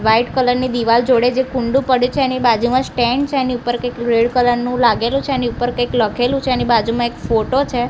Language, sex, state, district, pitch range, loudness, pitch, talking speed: Gujarati, female, Gujarat, Gandhinagar, 235-255 Hz, -16 LUFS, 245 Hz, 235 wpm